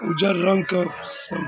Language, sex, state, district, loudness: Maithili, male, Bihar, Darbhanga, -22 LUFS